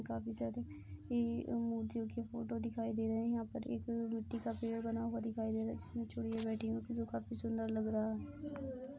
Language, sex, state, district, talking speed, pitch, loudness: Hindi, female, Uttar Pradesh, Etah, 235 wpm, 225 Hz, -40 LUFS